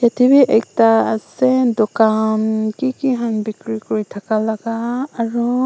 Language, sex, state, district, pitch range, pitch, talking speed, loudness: Nagamese, female, Nagaland, Dimapur, 220-250 Hz, 230 Hz, 125 wpm, -17 LUFS